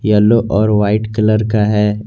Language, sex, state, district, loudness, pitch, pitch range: Hindi, male, Jharkhand, Garhwa, -13 LUFS, 105 Hz, 105-110 Hz